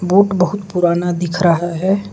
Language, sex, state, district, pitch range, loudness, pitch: Hindi, male, Arunachal Pradesh, Lower Dibang Valley, 175-190 Hz, -16 LUFS, 180 Hz